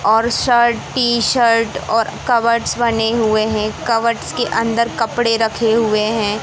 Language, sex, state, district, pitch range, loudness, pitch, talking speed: Hindi, male, Madhya Pradesh, Katni, 220-235 Hz, -16 LUFS, 230 Hz, 150 wpm